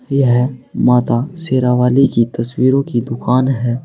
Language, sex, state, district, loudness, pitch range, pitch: Hindi, male, Uttar Pradesh, Saharanpur, -15 LUFS, 120-130 Hz, 125 Hz